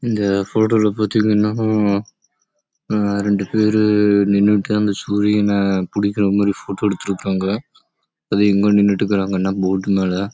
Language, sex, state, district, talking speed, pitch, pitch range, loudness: Tamil, male, Karnataka, Chamarajanagar, 80 wpm, 100 Hz, 100-105 Hz, -17 LUFS